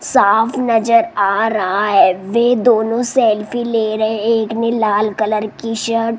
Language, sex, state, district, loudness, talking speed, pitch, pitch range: Hindi, female, Rajasthan, Jaipur, -15 LUFS, 165 wpm, 225 Hz, 215-230 Hz